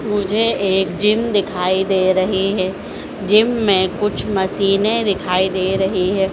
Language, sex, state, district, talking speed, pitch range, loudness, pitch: Hindi, female, Madhya Pradesh, Dhar, 140 wpm, 190-210 Hz, -17 LUFS, 195 Hz